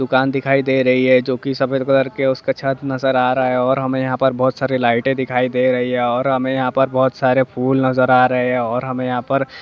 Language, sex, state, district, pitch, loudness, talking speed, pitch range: Hindi, male, Jharkhand, Jamtara, 130 Hz, -17 LUFS, 270 wpm, 125-135 Hz